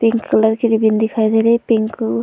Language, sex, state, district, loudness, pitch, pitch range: Hindi, female, Uttar Pradesh, Hamirpur, -15 LUFS, 225 Hz, 220-230 Hz